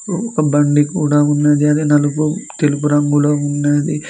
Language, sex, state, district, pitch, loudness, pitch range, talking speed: Telugu, male, Telangana, Mahabubabad, 145 Hz, -15 LUFS, 145-150 Hz, 130 wpm